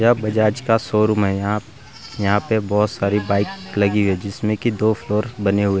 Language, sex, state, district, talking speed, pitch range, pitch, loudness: Hindi, male, Bihar, Vaishali, 195 wpm, 100-110 Hz, 105 Hz, -19 LUFS